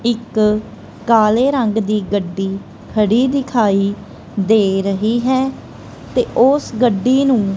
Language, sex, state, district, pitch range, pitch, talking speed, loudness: Punjabi, female, Punjab, Kapurthala, 205-250 Hz, 220 Hz, 110 wpm, -16 LUFS